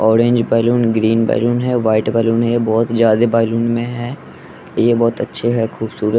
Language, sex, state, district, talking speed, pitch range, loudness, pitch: Hindi, male, Bihar, West Champaran, 195 wpm, 115-120 Hz, -15 LUFS, 115 Hz